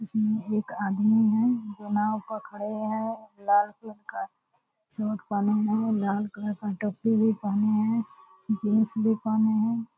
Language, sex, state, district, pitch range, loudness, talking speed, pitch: Hindi, female, Bihar, Purnia, 210-220 Hz, -26 LUFS, 155 wpm, 215 Hz